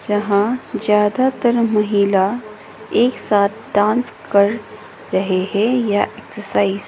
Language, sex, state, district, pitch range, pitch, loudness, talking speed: Hindi, female, Sikkim, Gangtok, 200-230 Hz, 210 Hz, -17 LUFS, 105 wpm